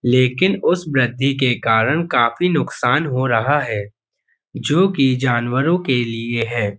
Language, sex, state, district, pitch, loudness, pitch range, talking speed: Hindi, male, Uttar Pradesh, Budaun, 130 Hz, -18 LUFS, 120-150 Hz, 140 wpm